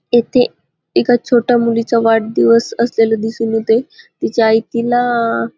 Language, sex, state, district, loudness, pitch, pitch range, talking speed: Marathi, female, Maharashtra, Dhule, -14 LUFS, 230 Hz, 225-240 Hz, 130 wpm